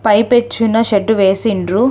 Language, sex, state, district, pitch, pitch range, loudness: Telugu, female, Telangana, Hyderabad, 220 Hz, 205-230 Hz, -13 LUFS